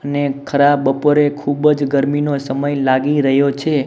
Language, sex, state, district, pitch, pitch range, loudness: Gujarati, male, Gujarat, Gandhinagar, 145 Hz, 140-145 Hz, -16 LUFS